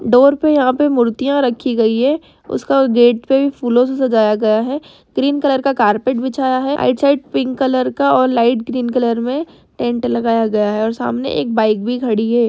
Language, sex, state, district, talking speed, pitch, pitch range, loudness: Hindi, female, Bihar, Jahanabad, 205 wpm, 250 Hz, 230-270 Hz, -15 LUFS